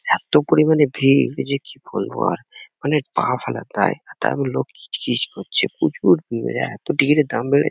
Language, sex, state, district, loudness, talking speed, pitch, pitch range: Bengali, male, West Bengal, Kolkata, -20 LUFS, 180 wpm, 145 Hz, 140-155 Hz